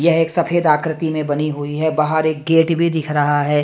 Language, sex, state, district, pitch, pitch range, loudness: Hindi, male, Haryana, Charkhi Dadri, 155 Hz, 150-165 Hz, -17 LUFS